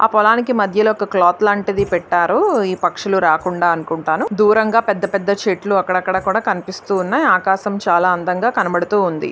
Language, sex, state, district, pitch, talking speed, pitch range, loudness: Telugu, female, Andhra Pradesh, Guntur, 195 Hz, 150 wpm, 180-210 Hz, -16 LUFS